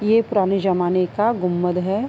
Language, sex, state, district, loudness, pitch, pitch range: Hindi, female, Uttar Pradesh, Budaun, -20 LUFS, 195 Hz, 180-210 Hz